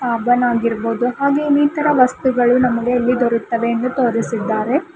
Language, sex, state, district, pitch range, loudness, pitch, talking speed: Kannada, female, Karnataka, Bidar, 235-260 Hz, -16 LUFS, 245 Hz, 120 wpm